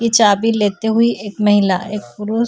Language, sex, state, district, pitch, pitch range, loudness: Hindi, female, Maharashtra, Chandrapur, 210 Hz, 205-225 Hz, -15 LUFS